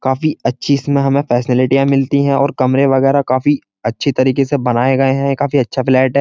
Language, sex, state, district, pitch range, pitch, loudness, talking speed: Hindi, male, Uttar Pradesh, Jyotiba Phule Nagar, 130-140 Hz, 135 Hz, -14 LUFS, 205 wpm